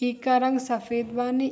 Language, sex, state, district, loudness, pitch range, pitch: Hindi, female, Bihar, Saharsa, -25 LUFS, 235-255 Hz, 245 Hz